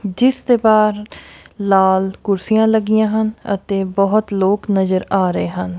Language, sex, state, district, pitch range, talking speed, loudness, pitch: Punjabi, female, Punjab, Kapurthala, 190-220 Hz, 145 wpm, -16 LUFS, 200 Hz